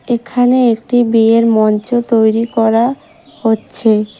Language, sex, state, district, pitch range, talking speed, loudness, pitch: Bengali, female, West Bengal, Cooch Behar, 220-240 Hz, 100 wpm, -13 LUFS, 230 Hz